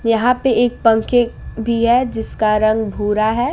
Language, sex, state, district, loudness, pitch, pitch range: Hindi, female, Bihar, West Champaran, -16 LUFS, 230 Hz, 220-245 Hz